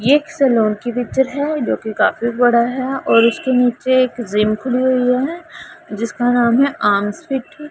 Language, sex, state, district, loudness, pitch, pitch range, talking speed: Hindi, female, Punjab, Pathankot, -16 LUFS, 250 Hz, 235-270 Hz, 180 wpm